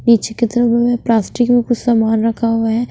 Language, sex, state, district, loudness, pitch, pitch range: Hindi, female, Punjab, Pathankot, -15 LUFS, 235 Hz, 225-240 Hz